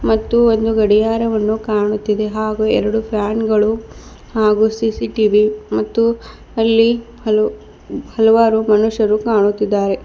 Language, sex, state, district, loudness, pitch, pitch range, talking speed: Kannada, female, Karnataka, Bidar, -16 LUFS, 220 Hz, 210-225 Hz, 95 wpm